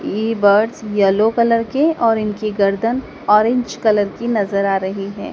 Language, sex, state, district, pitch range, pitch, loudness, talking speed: Hindi, female, Madhya Pradesh, Dhar, 200-230 Hz, 215 Hz, -17 LUFS, 170 wpm